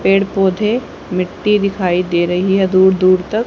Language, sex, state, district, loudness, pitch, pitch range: Hindi, female, Haryana, Rohtak, -15 LUFS, 190 Hz, 185-200 Hz